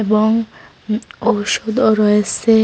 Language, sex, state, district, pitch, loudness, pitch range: Bengali, female, Assam, Hailakandi, 215 Hz, -16 LUFS, 210-225 Hz